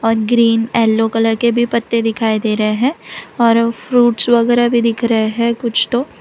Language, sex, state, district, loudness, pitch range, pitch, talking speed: Hindi, female, Gujarat, Valsad, -14 LUFS, 225-240 Hz, 230 Hz, 185 wpm